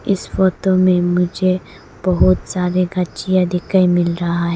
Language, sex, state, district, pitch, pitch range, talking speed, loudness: Hindi, female, Arunachal Pradesh, Lower Dibang Valley, 180 Hz, 175-185 Hz, 145 wpm, -17 LUFS